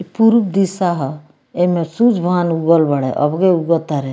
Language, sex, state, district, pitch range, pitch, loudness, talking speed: Bhojpuri, female, Bihar, Muzaffarpur, 150-185 Hz, 170 Hz, -16 LUFS, 175 wpm